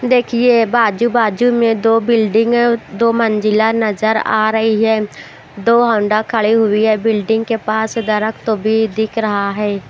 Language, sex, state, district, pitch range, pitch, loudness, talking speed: Hindi, female, Haryana, Jhajjar, 215-230 Hz, 220 Hz, -14 LUFS, 145 wpm